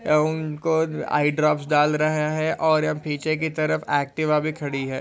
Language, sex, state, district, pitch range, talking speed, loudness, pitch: Hindi, male, Maharashtra, Solapur, 150-155 Hz, 190 wpm, -23 LUFS, 155 Hz